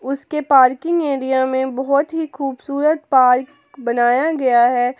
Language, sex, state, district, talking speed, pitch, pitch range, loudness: Hindi, female, Jharkhand, Palamu, 130 wpm, 270 Hz, 255-290 Hz, -17 LUFS